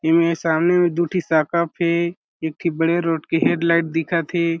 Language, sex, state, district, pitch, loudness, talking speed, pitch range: Chhattisgarhi, male, Chhattisgarh, Jashpur, 170 Hz, -20 LUFS, 220 wpm, 165-170 Hz